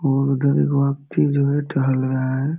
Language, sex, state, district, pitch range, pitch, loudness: Hindi, male, Bihar, Jamui, 135-140 Hz, 140 Hz, -20 LUFS